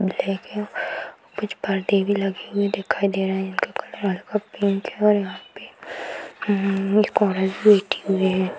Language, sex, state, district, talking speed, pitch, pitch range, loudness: Hindi, female, Bihar, Bhagalpur, 175 wpm, 195 Hz, 190-205 Hz, -23 LUFS